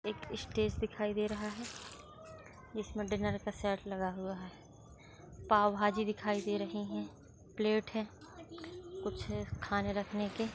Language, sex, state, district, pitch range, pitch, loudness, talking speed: Hindi, female, Chhattisgarh, Raigarh, 195-215 Hz, 210 Hz, -37 LUFS, 150 wpm